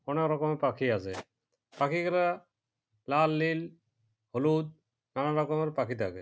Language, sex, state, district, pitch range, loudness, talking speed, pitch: Bengali, male, West Bengal, Purulia, 125-155 Hz, -30 LUFS, 105 wpm, 150 Hz